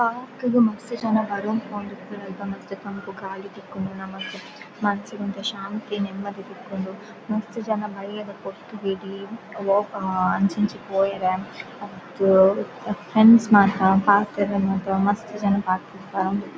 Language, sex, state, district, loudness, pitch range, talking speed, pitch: Tulu, female, Karnataka, Dakshina Kannada, -23 LUFS, 195-210 Hz, 125 wpm, 200 Hz